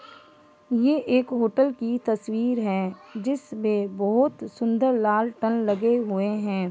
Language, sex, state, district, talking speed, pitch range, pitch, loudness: Hindi, female, Uttarakhand, Uttarkashi, 135 wpm, 205-245 Hz, 230 Hz, -24 LUFS